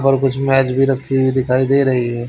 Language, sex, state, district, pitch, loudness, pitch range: Hindi, male, Haryana, Charkhi Dadri, 135 Hz, -16 LUFS, 130-135 Hz